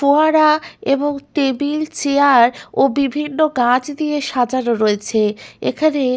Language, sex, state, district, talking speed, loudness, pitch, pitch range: Bengali, female, West Bengal, Malda, 105 wpm, -17 LUFS, 280 Hz, 250-295 Hz